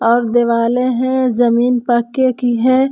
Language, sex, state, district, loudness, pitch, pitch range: Hindi, female, Jharkhand, Palamu, -14 LUFS, 245 Hz, 235-255 Hz